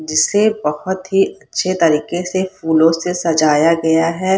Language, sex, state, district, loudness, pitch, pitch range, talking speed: Hindi, female, Bihar, Purnia, -16 LUFS, 170 Hz, 160-185 Hz, 150 wpm